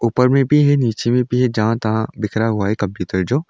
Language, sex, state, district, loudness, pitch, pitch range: Hindi, male, Arunachal Pradesh, Longding, -17 LUFS, 115 Hz, 110-125 Hz